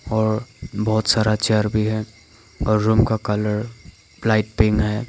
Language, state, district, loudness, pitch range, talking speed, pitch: Hindi, Arunachal Pradesh, Papum Pare, -20 LUFS, 105-110 Hz, 155 wpm, 110 Hz